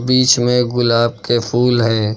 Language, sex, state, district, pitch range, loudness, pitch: Hindi, male, Uttar Pradesh, Lucknow, 115-125 Hz, -14 LUFS, 120 Hz